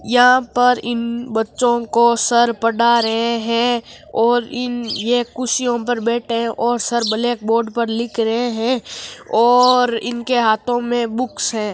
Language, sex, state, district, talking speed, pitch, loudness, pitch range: Marwari, female, Rajasthan, Nagaur, 155 wpm, 235 Hz, -17 LUFS, 230-245 Hz